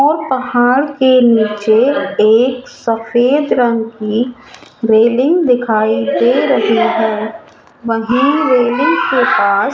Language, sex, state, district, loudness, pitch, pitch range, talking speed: Hindi, male, Rajasthan, Jaipur, -13 LUFS, 245 Hz, 220-265 Hz, 105 wpm